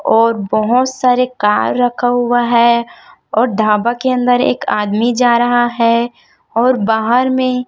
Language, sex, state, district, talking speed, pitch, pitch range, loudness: Hindi, female, Chhattisgarh, Raipur, 150 wpm, 240 Hz, 230-250 Hz, -14 LUFS